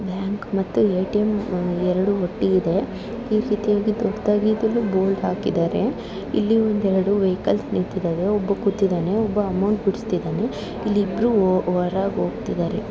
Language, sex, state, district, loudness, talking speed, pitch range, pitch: Kannada, female, Karnataka, Raichur, -22 LUFS, 115 wpm, 185-210 Hz, 200 Hz